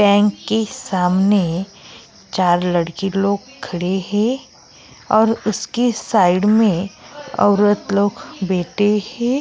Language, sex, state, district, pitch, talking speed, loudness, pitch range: Hindi, female, Uttar Pradesh, Jyotiba Phule Nagar, 205 Hz, 100 wpm, -18 LUFS, 185-220 Hz